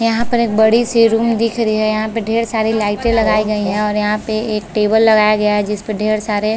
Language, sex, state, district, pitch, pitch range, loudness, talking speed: Hindi, female, Chhattisgarh, Balrampur, 215 Hz, 210-225 Hz, -15 LUFS, 265 wpm